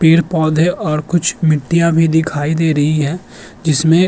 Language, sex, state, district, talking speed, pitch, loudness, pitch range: Hindi, male, Uttar Pradesh, Budaun, 175 wpm, 160 Hz, -14 LUFS, 155-170 Hz